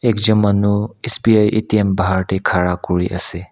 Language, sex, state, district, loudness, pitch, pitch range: Nagamese, male, Nagaland, Kohima, -16 LUFS, 100 Hz, 95-110 Hz